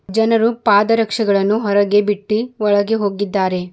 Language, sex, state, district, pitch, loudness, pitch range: Kannada, female, Karnataka, Bidar, 205 Hz, -16 LUFS, 205-225 Hz